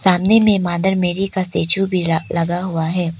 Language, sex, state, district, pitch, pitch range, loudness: Hindi, female, Arunachal Pradesh, Papum Pare, 180 Hz, 170-190 Hz, -17 LUFS